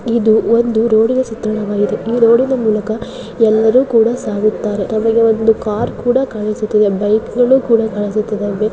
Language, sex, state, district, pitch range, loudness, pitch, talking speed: Kannada, female, Karnataka, Dakshina Kannada, 215-235 Hz, -14 LUFS, 220 Hz, 160 wpm